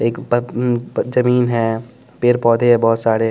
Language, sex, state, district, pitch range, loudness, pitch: Hindi, male, Bihar, West Champaran, 115-120 Hz, -16 LUFS, 120 Hz